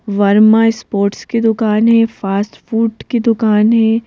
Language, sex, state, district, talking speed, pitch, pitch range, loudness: Hindi, female, Madhya Pradesh, Bhopal, 145 wpm, 225 Hz, 210-230 Hz, -13 LUFS